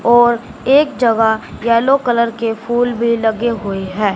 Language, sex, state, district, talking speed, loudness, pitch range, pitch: Hindi, female, Punjab, Fazilka, 160 wpm, -15 LUFS, 225-240 Hz, 235 Hz